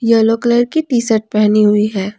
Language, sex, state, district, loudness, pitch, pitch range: Hindi, female, Jharkhand, Ranchi, -13 LUFS, 225 Hz, 210-235 Hz